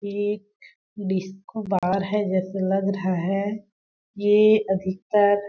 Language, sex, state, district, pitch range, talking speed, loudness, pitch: Hindi, female, Chhattisgarh, Balrampur, 190-205 Hz, 120 wpm, -23 LUFS, 200 Hz